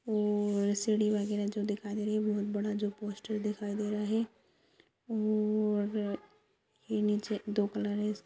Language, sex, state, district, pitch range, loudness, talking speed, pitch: Hindi, female, Uttar Pradesh, Deoria, 205-215 Hz, -33 LUFS, 180 wpm, 210 Hz